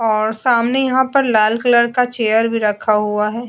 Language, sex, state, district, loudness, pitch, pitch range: Hindi, female, Goa, North and South Goa, -15 LUFS, 230 Hz, 215-245 Hz